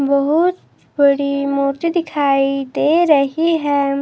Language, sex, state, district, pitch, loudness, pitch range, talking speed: Hindi, male, Himachal Pradesh, Shimla, 280 Hz, -16 LUFS, 275-320 Hz, 105 wpm